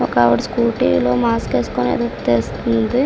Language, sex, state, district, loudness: Telugu, female, Andhra Pradesh, Srikakulam, -17 LUFS